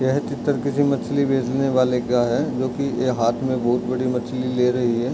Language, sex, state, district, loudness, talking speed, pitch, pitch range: Hindi, male, Bihar, Darbhanga, -21 LUFS, 210 wpm, 125 Hz, 125-135 Hz